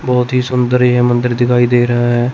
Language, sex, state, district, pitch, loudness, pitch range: Hindi, male, Chandigarh, Chandigarh, 125 Hz, -13 LUFS, 120-125 Hz